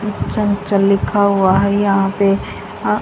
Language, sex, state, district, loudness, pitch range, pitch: Hindi, female, Haryana, Jhajjar, -15 LUFS, 195-205 Hz, 200 Hz